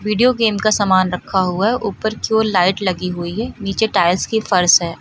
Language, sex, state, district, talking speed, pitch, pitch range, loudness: Hindi, female, Uttar Pradesh, Lucknow, 225 wpm, 195 Hz, 180-220 Hz, -16 LUFS